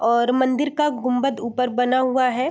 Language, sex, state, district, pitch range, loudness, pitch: Hindi, female, Bihar, East Champaran, 245-260 Hz, -20 LUFS, 255 Hz